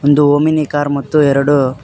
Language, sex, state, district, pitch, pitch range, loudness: Kannada, male, Karnataka, Koppal, 145 Hz, 140-150 Hz, -13 LUFS